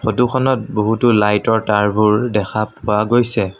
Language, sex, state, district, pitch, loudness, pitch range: Assamese, male, Assam, Sonitpur, 110 Hz, -16 LUFS, 105-115 Hz